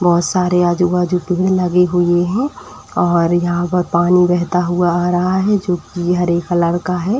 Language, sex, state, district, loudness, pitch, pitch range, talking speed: Hindi, female, Uttar Pradesh, Etah, -15 LUFS, 180 Hz, 175-180 Hz, 185 wpm